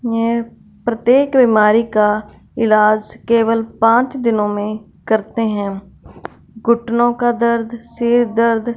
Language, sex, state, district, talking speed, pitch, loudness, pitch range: Hindi, female, Punjab, Fazilka, 110 wpm, 230 Hz, -16 LUFS, 215-235 Hz